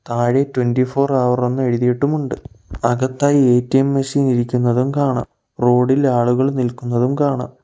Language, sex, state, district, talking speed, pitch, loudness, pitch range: Malayalam, male, Kerala, Kollam, 125 wpm, 125 Hz, -17 LUFS, 120-135 Hz